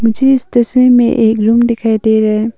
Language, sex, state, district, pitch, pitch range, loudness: Hindi, female, Arunachal Pradesh, Papum Pare, 230 Hz, 220-240 Hz, -11 LUFS